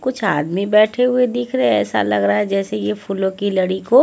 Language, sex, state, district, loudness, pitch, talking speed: Hindi, female, Haryana, Rohtak, -17 LUFS, 190 Hz, 255 wpm